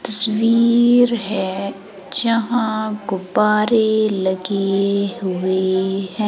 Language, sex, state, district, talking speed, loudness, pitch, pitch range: Hindi, female, Madhya Pradesh, Umaria, 65 wpm, -17 LUFS, 210 Hz, 195-230 Hz